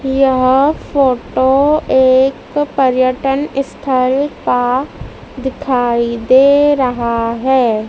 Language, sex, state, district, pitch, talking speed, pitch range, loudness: Hindi, female, Madhya Pradesh, Dhar, 265 Hz, 75 wpm, 255-275 Hz, -13 LUFS